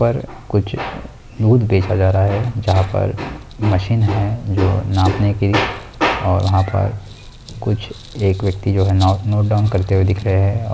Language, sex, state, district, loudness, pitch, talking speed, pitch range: Hindi, male, Bihar, Jamui, -17 LUFS, 100 Hz, 170 wpm, 95-110 Hz